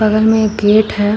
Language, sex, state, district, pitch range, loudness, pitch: Hindi, female, Uttar Pradesh, Shamli, 210-215 Hz, -12 LUFS, 215 Hz